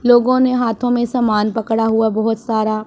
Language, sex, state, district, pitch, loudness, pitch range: Hindi, female, Punjab, Pathankot, 225 Hz, -16 LUFS, 220-245 Hz